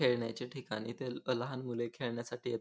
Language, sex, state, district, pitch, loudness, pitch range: Marathi, male, Maharashtra, Pune, 120 Hz, -38 LUFS, 120-125 Hz